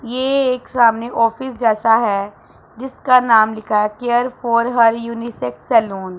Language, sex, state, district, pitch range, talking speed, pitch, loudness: Hindi, female, Punjab, Pathankot, 220-250 Hz, 155 wpm, 235 Hz, -16 LUFS